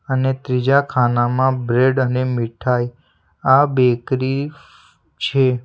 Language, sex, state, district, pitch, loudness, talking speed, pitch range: Gujarati, male, Gujarat, Valsad, 130 Hz, -18 LUFS, 95 wpm, 125-130 Hz